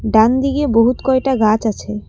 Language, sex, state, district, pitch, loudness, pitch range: Bengali, female, Assam, Kamrup Metropolitan, 230 Hz, -15 LUFS, 220-265 Hz